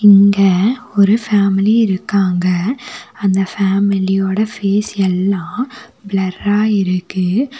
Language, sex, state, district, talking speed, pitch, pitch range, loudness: Tamil, female, Tamil Nadu, Nilgiris, 80 wpm, 200 Hz, 190-215 Hz, -15 LUFS